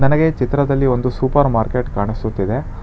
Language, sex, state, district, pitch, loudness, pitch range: Kannada, male, Karnataka, Bangalore, 125 Hz, -18 LUFS, 110-135 Hz